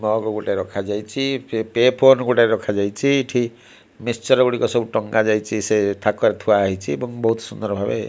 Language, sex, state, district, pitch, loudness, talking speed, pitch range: Odia, male, Odisha, Malkangiri, 110 Hz, -19 LUFS, 165 wpm, 105-125 Hz